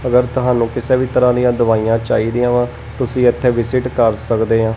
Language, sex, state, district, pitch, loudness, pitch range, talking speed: Punjabi, male, Punjab, Kapurthala, 120 Hz, -15 LUFS, 115-125 Hz, 175 wpm